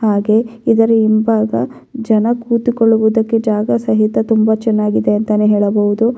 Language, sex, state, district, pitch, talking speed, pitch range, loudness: Kannada, female, Karnataka, Bellary, 220 Hz, 105 wpm, 210-225 Hz, -14 LUFS